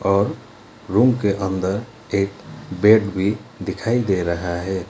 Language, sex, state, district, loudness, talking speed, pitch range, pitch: Hindi, male, West Bengal, Alipurduar, -20 LUFS, 135 wpm, 95-110 Hz, 100 Hz